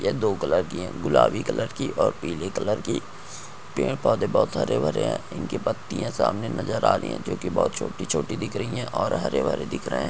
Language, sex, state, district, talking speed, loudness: Hindi, male, Maharashtra, Chandrapur, 230 wpm, -25 LUFS